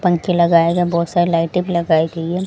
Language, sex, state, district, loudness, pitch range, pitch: Hindi, female, Haryana, Jhajjar, -16 LUFS, 165-175 Hz, 170 Hz